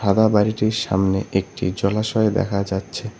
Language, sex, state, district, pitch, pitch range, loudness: Bengali, male, West Bengal, Cooch Behar, 105 Hz, 95-110 Hz, -20 LUFS